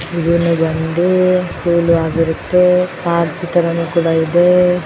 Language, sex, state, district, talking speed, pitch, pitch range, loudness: Kannada, female, Karnataka, Dakshina Kannada, 75 wpm, 170 Hz, 165-180 Hz, -14 LUFS